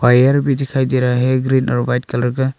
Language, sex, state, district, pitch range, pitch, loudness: Hindi, male, Arunachal Pradesh, Papum Pare, 125-135 Hz, 130 Hz, -16 LUFS